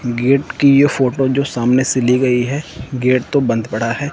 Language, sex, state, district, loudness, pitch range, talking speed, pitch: Hindi, male, Chandigarh, Chandigarh, -15 LUFS, 125-140 Hz, 220 wpm, 130 Hz